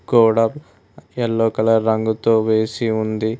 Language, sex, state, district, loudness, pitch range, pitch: Telugu, male, Telangana, Mahabubabad, -18 LUFS, 110-115 Hz, 115 Hz